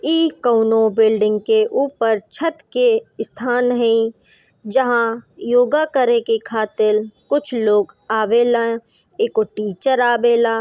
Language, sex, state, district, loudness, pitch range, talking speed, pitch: Bhojpuri, female, Bihar, Gopalganj, -17 LUFS, 220-260 Hz, 105 wpm, 230 Hz